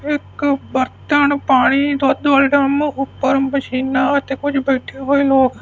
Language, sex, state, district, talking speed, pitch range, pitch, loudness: Punjabi, male, Punjab, Fazilka, 150 wpm, 265-285 Hz, 275 Hz, -16 LUFS